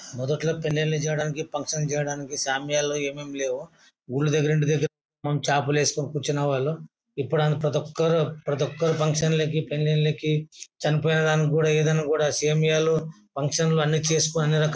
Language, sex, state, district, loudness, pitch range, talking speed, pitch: Telugu, male, Karnataka, Bellary, -24 LUFS, 145-155 Hz, 145 wpm, 155 Hz